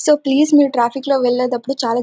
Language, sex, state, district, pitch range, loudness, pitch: Telugu, female, Karnataka, Bellary, 245-280 Hz, -16 LUFS, 270 Hz